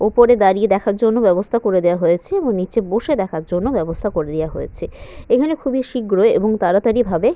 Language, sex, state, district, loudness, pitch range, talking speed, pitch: Bengali, female, West Bengal, Malda, -17 LUFS, 180-240 Hz, 185 wpm, 215 Hz